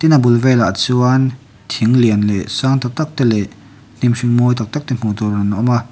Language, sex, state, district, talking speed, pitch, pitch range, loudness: Mizo, male, Mizoram, Aizawl, 245 wpm, 120 Hz, 105-130 Hz, -15 LUFS